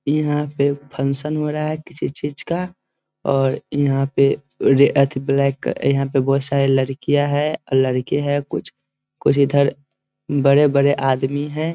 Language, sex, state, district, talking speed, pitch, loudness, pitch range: Hindi, male, Bihar, Muzaffarpur, 150 wpm, 140 Hz, -19 LUFS, 135-145 Hz